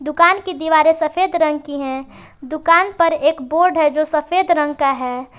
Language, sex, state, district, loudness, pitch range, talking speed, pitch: Hindi, female, Jharkhand, Palamu, -16 LUFS, 295-335 Hz, 190 wpm, 310 Hz